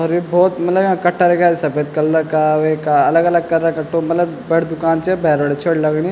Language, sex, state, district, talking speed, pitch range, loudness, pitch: Garhwali, male, Uttarakhand, Tehri Garhwal, 245 wpm, 155-175 Hz, -15 LUFS, 165 Hz